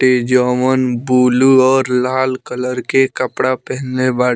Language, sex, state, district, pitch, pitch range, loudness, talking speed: Bhojpuri, male, Bihar, Muzaffarpur, 130 Hz, 125-130 Hz, -15 LUFS, 140 wpm